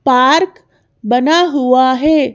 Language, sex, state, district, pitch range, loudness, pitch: Hindi, female, Madhya Pradesh, Bhopal, 255-320 Hz, -12 LUFS, 265 Hz